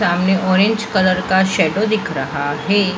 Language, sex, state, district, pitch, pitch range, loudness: Hindi, female, Maharashtra, Mumbai Suburban, 190 Hz, 175-205 Hz, -16 LUFS